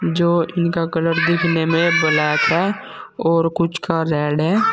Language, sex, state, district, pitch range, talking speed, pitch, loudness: Hindi, male, Uttar Pradesh, Saharanpur, 160-170 Hz, 150 wpm, 165 Hz, -18 LUFS